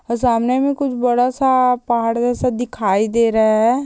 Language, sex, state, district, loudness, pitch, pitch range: Hindi, female, Bihar, Jahanabad, -17 LUFS, 245 Hz, 230-255 Hz